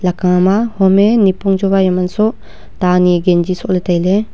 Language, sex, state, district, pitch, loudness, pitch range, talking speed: Wancho, female, Arunachal Pradesh, Longding, 185 Hz, -13 LUFS, 180-200 Hz, 150 wpm